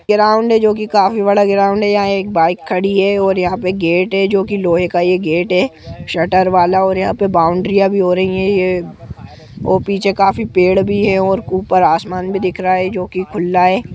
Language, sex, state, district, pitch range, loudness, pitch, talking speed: Hindi, female, Jharkhand, Jamtara, 180-200 Hz, -14 LUFS, 190 Hz, 210 wpm